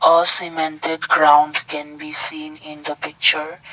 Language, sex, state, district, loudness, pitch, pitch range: English, male, Assam, Kamrup Metropolitan, -16 LUFS, 155 Hz, 150-160 Hz